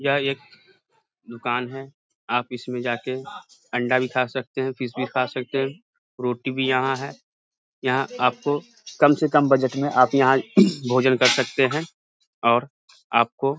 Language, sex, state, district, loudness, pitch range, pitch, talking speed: Hindi, male, Bihar, Samastipur, -22 LUFS, 125-140 Hz, 130 Hz, 165 wpm